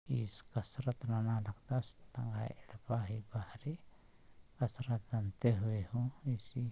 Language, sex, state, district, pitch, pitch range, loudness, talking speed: Sadri, male, Chhattisgarh, Jashpur, 115 Hz, 110-125 Hz, -40 LUFS, 80 wpm